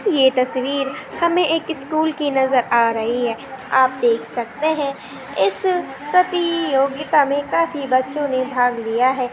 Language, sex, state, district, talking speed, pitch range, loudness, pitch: Hindi, female, Maharashtra, Pune, 140 wpm, 255-315 Hz, -19 LUFS, 275 Hz